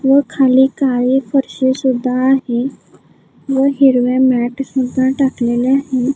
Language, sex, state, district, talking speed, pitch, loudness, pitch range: Marathi, female, Maharashtra, Gondia, 115 wpm, 260 Hz, -14 LUFS, 255-270 Hz